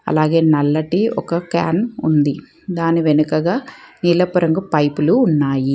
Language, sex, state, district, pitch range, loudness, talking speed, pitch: Telugu, female, Telangana, Hyderabad, 150-175 Hz, -17 LUFS, 115 wpm, 165 Hz